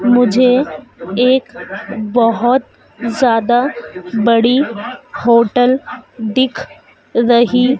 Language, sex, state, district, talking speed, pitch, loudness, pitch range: Hindi, female, Madhya Pradesh, Dhar, 60 wpm, 245 Hz, -14 LUFS, 230-255 Hz